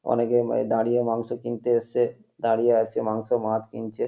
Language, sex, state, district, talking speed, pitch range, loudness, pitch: Bengali, male, West Bengal, North 24 Parganas, 160 wpm, 110-120 Hz, -25 LUFS, 115 Hz